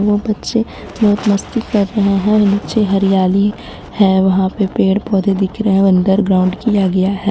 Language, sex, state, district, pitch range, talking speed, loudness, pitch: Hindi, female, Jharkhand, Garhwa, 195-210 Hz, 170 wpm, -14 LUFS, 200 Hz